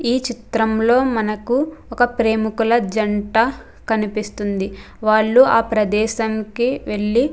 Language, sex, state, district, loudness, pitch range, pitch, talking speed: Telugu, female, Andhra Pradesh, Krishna, -18 LUFS, 215-240 Hz, 225 Hz, 105 wpm